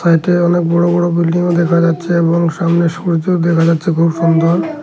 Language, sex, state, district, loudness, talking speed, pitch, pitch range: Bengali, male, Tripura, Unakoti, -13 LUFS, 175 wpm, 170 Hz, 165-175 Hz